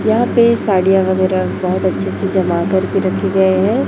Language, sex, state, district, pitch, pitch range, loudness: Hindi, female, Chhattisgarh, Raipur, 190 Hz, 185-200 Hz, -15 LUFS